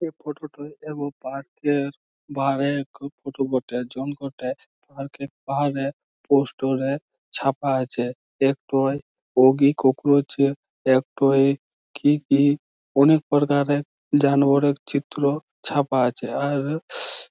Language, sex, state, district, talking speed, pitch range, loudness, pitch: Bengali, male, West Bengal, Malda, 115 wpm, 135-145 Hz, -22 LUFS, 140 Hz